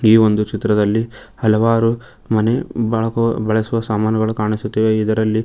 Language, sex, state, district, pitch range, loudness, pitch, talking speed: Kannada, male, Karnataka, Koppal, 110-115 Hz, -17 LUFS, 110 Hz, 110 wpm